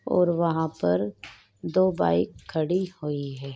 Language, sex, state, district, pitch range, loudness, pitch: Hindi, female, Rajasthan, Nagaur, 100-170 Hz, -26 LUFS, 145 Hz